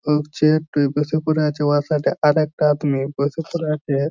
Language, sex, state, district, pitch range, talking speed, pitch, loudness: Bengali, male, West Bengal, Jhargram, 145-155 Hz, 205 wpm, 150 Hz, -20 LUFS